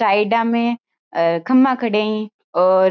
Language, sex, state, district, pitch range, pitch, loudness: Marwari, female, Rajasthan, Churu, 190-235 Hz, 215 Hz, -18 LUFS